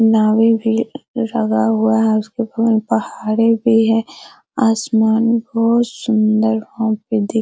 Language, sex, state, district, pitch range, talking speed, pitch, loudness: Hindi, female, Bihar, Araria, 215-230 Hz, 145 wpm, 225 Hz, -16 LUFS